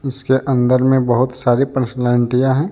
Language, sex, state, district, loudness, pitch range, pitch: Hindi, male, Jharkhand, Deoghar, -16 LUFS, 125-130 Hz, 130 Hz